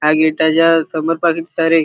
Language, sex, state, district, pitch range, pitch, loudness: Marathi, male, Maharashtra, Chandrapur, 160-165 Hz, 165 Hz, -15 LUFS